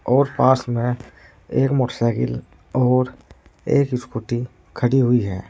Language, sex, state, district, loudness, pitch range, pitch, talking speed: Hindi, male, Uttar Pradesh, Saharanpur, -20 LUFS, 120-130 Hz, 125 Hz, 120 wpm